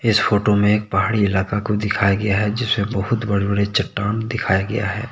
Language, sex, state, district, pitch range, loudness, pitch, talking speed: Hindi, male, Jharkhand, Deoghar, 100-110 Hz, -19 LUFS, 105 Hz, 210 wpm